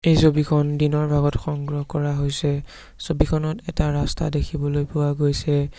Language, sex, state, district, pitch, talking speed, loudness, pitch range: Assamese, male, Assam, Sonitpur, 150 Hz, 135 wpm, -22 LUFS, 145-155 Hz